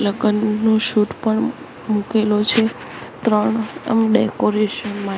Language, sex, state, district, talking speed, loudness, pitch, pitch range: Gujarati, female, Gujarat, Gandhinagar, 95 wpm, -18 LUFS, 215 Hz, 210-220 Hz